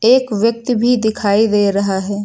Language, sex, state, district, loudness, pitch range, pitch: Hindi, female, Uttar Pradesh, Lucknow, -15 LUFS, 200-235 Hz, 220 Hz